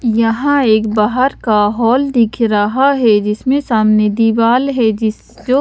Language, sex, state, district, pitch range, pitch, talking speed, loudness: Hindi, female, Chandigarh, Chandigarh, 215-255 Hz, 225 Hz, 140 wpm, -13 LUFS